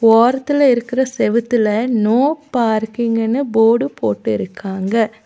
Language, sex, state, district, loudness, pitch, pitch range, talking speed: Tamil, female, Tamil Nadu, Nilgiris, -16 LUFS, 235 Hz, 225-255 Hz, 90 wpm